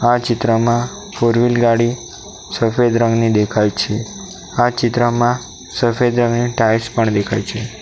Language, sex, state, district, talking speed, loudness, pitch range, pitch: Gujarati, male, Gujarat, Valsad, 105 wpm, -16 LUFS, 115-120 Hz, 115 Hz